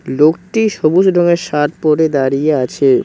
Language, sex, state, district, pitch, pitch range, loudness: Bengali, male, West Bengal, Cooch Behar, 155 Hz, 145-175 Hz, -13 LUFS